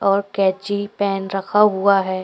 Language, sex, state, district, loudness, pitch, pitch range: Hindi, female, Goa, North and South Goa, -19 LUFS, 195 Hz, 195-205 Hz